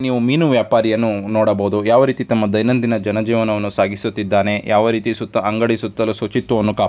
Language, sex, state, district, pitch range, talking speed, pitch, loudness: Kannada, male, Karnataka, Dharwad, 105-115 Hz, 150 wpm, 110 Hz, -17 LUFS